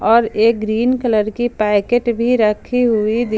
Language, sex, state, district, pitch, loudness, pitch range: Hindi, female, Jharkhand, Ranchi, 230 Hz, -16 LUFS, 215-240 Hz